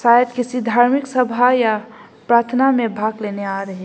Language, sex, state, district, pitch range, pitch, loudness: Hindi, female, Assam, Hailakandi, 215-250 Hz, 235 Hz, -17 LUFS